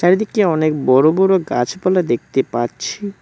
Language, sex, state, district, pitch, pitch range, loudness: Bengali, male, West Bengal, Cooch Behar, 170 Hz, 130-190 Hz, -16 LUFS